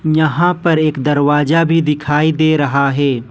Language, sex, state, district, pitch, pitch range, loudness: Hindi, male, Jharkhand, Ranchi, 150 Hz, 145-160 Hz, -14 LUFS